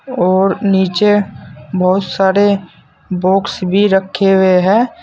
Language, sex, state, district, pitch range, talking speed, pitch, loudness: Hindi, male, Uttar Pradesh, Saharanpur, 185-200 Hz, 110 wpm, 190 Hz, -13 LUFS